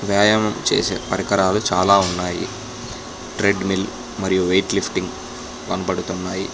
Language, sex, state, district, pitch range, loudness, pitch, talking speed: Telugu, male, Telangana, Hyderabad, 90-100 Hz, -20 LUFS, 95 Hz, 90 wpm